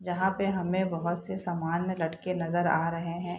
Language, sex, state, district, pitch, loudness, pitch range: Hindi, female, Bihar, Saharsa, 175 Hz, -30 LUFS, 170-185 Hz